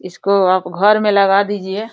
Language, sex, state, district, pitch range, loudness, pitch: Hindi, female, Uttar Pradesh, Deoria, 185-205 Hz, -14 LUFS, 200 Hz